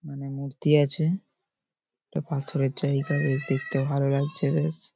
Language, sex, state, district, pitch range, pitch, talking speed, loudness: Bengali, male, West Bengal, Paschim Medinipur, 140-150 Hz, 140 Hz, 145 wpm, -26 LUFS